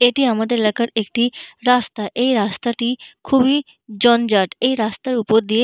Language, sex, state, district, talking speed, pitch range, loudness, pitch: Bengali, female, West Bengal, North 24 Parganas, 140 wpm, 220-250 Hz, -18 LUFS, 235 Hz